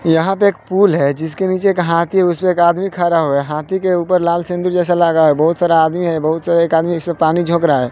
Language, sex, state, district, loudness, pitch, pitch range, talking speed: Hindi, male, Bihar, West Champaran, -15 LUFS, 170 Hz, 160-180 Hz, 275 wpm